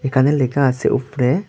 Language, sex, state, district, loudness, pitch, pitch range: Bengali, male, Tripura, Dhalai, -18 LUFS, 135 Hz, 130-140 Hz